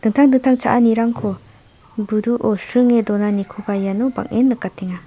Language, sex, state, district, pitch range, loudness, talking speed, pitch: Garo, female, Meghalaya, South Garo Hills, 205-245 Hz, -17 LUFS, 105 wpm, 225 Hz